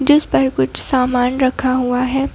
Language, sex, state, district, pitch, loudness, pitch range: Hindi, female, Madhya Pradesh, Bhopal, 255 Hz, -16 LUFS, 245-265 Hz